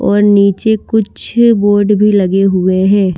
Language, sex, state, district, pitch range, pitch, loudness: Hindi, female, Maharashtra, Washim, 195-210 Hz, 205 Hz, -11 LUFS